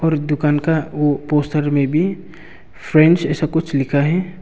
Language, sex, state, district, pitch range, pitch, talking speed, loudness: Hindi, male, Arunachal Pradesh, Longding, 145-160 Hz, 155 Hz, 165 wpm, -17 LUFS